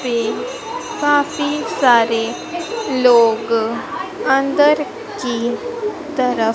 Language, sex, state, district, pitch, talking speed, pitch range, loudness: Hindi, female, Madhya Pradesh, Dhar, 270 Hz, 55 wpm, 235-335 Hz, -17 LUFS